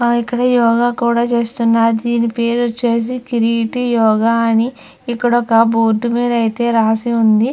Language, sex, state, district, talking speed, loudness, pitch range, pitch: Telugu, female, Andhra Pradesh, Chittoor, 145 wpm, -15 LUFS, 230-240 Hz, 235 Hz